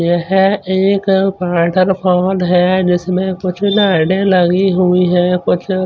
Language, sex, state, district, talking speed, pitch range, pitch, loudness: Hindi, male, Chandigarh, Chandigarh, 110 wpm, 180-190 Hz, 185 Hz, -13 LUFS